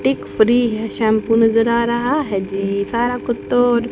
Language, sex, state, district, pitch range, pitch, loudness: Hindi, female, Haryana, Jhajjar, 205-240 Hz, 225 Hz, -17 LUFS